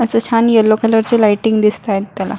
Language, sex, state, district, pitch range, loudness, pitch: Marathi, female, Maharashtra, Solapur, 210-230 Hz, -13 LUFS, 220 Hz